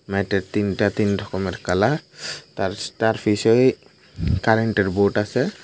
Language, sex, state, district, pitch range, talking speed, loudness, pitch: Bengali, male, Tripura, Unakoti, 100-110 Hz, 115 wpm, -21 LUFS, 105 Hz